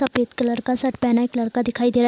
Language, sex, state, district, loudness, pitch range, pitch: Hindi, female, Bihar, Gopalganj, -21 LUFS, 240-250 Hz, 245 Hz